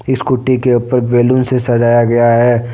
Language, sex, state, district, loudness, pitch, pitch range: Hindi, male, Jharkhand, Deoghar, -12 LUFS, 120 Hz, 120-130 Hz